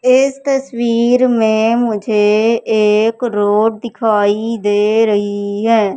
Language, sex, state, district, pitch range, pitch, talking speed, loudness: Hindi, male, Madhya Pradesh, Katni, 210-235 Hz, 220 Hz, 100 wpm, -14 LUFS